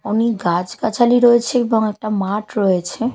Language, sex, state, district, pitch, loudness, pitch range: Bengali, female, Bihar, Katihar, 220 Hz, -17 LUFS, 205-240 Hz